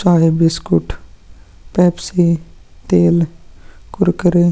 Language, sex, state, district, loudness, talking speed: Hindi, male, Uttarakhand, Tehri Garhwal, -15 LUFS, 80 wpm